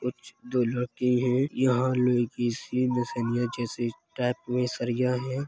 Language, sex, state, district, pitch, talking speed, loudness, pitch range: Hindi, male, Uttar Pradesh, Hamirpur, 125 Hz, 165 wpm, -27 LUFS, 120-125 Hz